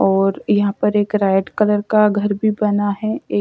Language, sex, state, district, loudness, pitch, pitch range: Hindi, female, Bihar, Kaimur, -17 LUFS, 205 Hz, 195-210 Hz